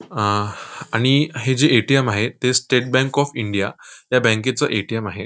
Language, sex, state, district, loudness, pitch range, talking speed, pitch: Marathi, male, Maharashtra, Nagpur, -19 LUFS, 110-130 Hz, 180 wpm, 120 Hz